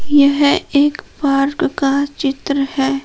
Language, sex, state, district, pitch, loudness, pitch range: Hindi, female, Jharkhand, Palamu, 280 Hz, -16 LUFS, 275-285 Hz